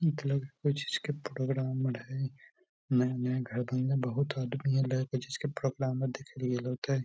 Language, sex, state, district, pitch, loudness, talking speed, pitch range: Hindi, male, Bihar, Lakhisarai, 135 Hz, -33 LUFS, 160 wpm, 130-140 Hz